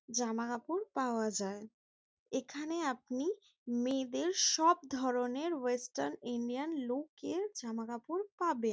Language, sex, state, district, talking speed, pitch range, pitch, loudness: Bengali, female, West Bengal, Jalpaiguri, 110 wpm, 240-325 Hz, 260 Hz, -36 LUFS